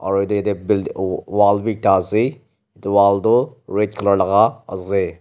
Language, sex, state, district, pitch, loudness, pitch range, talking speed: Nagamese, male, Nagaland, Dimapur, 100 Hz, -18 LUFS, 100-105 Hz, 160 wpm